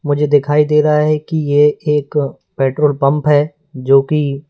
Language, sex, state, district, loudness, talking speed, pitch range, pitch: Hindi, male, Madhya Pradesh, Bhopal, -14 LUFS, 175 wpm, 145-150 Hz, 150 Hz